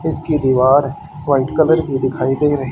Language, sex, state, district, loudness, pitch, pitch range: Hindi, male, Haryana, Charkhi Dadri, -15 LUFS, 140 Hz, 135-155 Hz